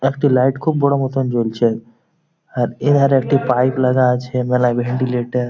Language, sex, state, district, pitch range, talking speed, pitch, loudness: Bengali, male, West Bengal, Jhargram, 125-140 Hz, 155 wpm, 130 Hz, -17 LUFS